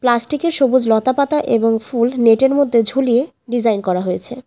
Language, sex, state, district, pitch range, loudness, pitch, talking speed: Bengali, female, West Bengal, Alipurduar, 225-270 Hz, -16 LUFS, 245 Hz, 145 wpm